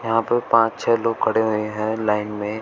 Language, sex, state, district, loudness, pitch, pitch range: Hindi, male, Uttar Pradesh, Shamli, -20 LUFS, 110 Hz, 105-115 Hz